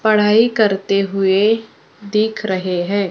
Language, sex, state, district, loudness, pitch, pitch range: Hindi, female, Maharashtra, Gondia, -16 LUFS, 205 Hz, 195-215 Hz